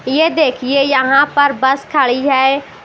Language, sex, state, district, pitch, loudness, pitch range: Hindi, female, Maharashtra, Washim, 275 Hz, -13 LUFS, 265-285 Hz